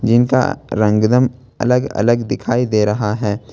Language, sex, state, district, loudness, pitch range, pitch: Hindi, male, Jharkhand, Ranchi, -16 LUFS, 105-125 Hz, 115 Hz